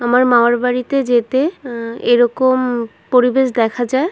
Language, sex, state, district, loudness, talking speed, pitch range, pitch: Bengali, female, West Bengal, Kolkata, -15 LUFS, 130 wpm, 240-260 Hz, 250 Hz